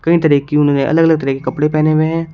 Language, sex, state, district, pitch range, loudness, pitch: Hindi, male, Uttar Pradesh, Shamli, 145-160 Hz, -14 LUFS, 155 Hz